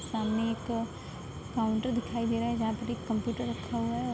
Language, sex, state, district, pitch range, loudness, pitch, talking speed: Hindi, female, Uttar Pradesh, Budaun, 225-235 Hz, -32 LUFS, 230 Hz, 230 wpm